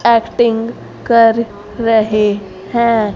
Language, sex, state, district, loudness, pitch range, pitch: Hindi, female, Haryana, Rohtak, -14 LUFS, 210-230 Hz, 225 Hz